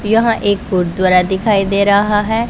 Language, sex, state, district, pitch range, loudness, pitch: Hindi, female, Punjab, Pathankot, 190-215 Hz, -14 LUFS, 200 Hz